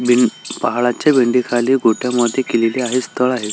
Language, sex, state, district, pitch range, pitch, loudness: Marathi, male, Maharashtra, Solapur, 120-125 Hz, 125 Hz, -16 LUFS